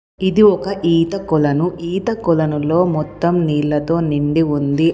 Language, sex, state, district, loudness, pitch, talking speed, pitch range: Telugu, female, Telangana, Komaram Bheem, -16 LUFS, 165 Hz, 120 wpm, 150-180 Hz